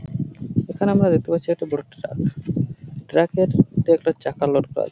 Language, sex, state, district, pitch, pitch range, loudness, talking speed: Bengali, male, West Bengal, Paschim Medinipur, 160 Hz, 145-170 Hz, -21 LUFS, 195 wpm